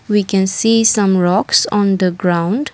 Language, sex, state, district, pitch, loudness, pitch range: English, female, Assam, Kamrup Metropolitan, 200 Hz, -14 LUFS, 185-220 Hz